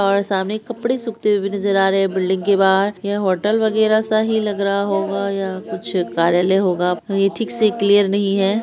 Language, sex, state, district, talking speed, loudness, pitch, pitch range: Hindi, male, Bihar, Araria, 200 wpm, -18 LUFS, 200 Hz, 195-215 Hz